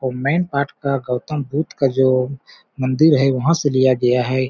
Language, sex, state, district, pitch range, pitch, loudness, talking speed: Hindi, male, Chhattisgarh, Balrampur, 130-145 Hz, 135 Hz, -18 LUFS, 200 wpm